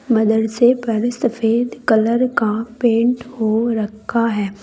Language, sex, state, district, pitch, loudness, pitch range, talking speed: Hindi, female, Uttar Pradesh, Saharanpur, 230 Hz, -17 LUFS, 220-240 Hz, 115 wpm